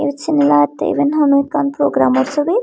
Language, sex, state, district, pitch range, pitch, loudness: Chakma, female, Tripura, Unakoti, 180-295 Hz, 285 Hz, -15 LUFS